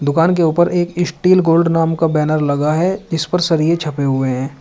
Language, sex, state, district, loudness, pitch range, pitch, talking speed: Hindi, male, Uttar Pradesh, Shamli, -15 LUFS, 150-175 Hz, 165 Hz, 220 wpm